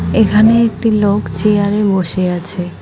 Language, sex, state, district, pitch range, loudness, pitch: Bengali, female, West Bengal, Cooch Behar, 185-215 Hz, -13 LUFS, 205 Hz